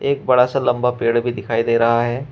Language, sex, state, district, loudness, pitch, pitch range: Hindi, male, Uttar Pradesh, Shamli, -17 LUFS, 120 Hz, 115-125 Hz